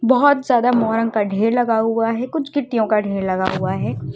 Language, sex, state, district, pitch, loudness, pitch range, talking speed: Hindi, female, Uttar Pradesh, Lucknow, 225 Hz, -18 LUFS, 200-245 Hz, 215 wpm